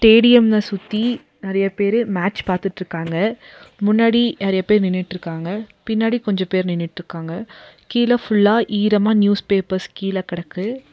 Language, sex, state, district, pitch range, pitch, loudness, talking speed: Tamil, female, Tamil Nadu, Nilgiris, 185-220 Hz, 205 Hz, -19 LUFS, 115 wpm